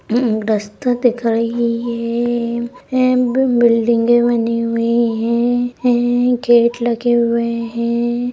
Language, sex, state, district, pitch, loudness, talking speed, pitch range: Hindi, female, Uttar Pradesh, Etah, 235 Hz, -16 LUFS, 110 wpm, 230-245 Hz